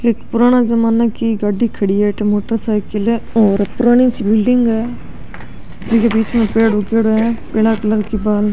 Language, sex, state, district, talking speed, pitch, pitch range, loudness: Rajasthani, male, Rajasthan, Nagaur, 185 wpm, 225 Hz, 210-230 Hz, -15 LUFS